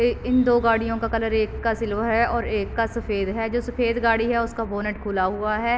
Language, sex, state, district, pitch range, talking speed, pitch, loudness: Hindi, female, Uttar Pradesh, Varanasi, 215-235 Hz, 250 wpm, 230 Hz, -23 LUFS